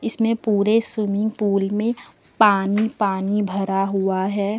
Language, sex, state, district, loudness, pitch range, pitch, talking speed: Hindi, female, Uttar Pradesh, Lucknow, -20 LUFS, 195-220 Hz, 205 Hz, 130 wpm